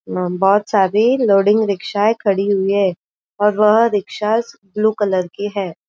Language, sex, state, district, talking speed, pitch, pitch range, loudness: Hindi, female, Maharashtra, Aurangabad, 140 wpm, 205 Hz, 195-215 Hz, -16 LUFS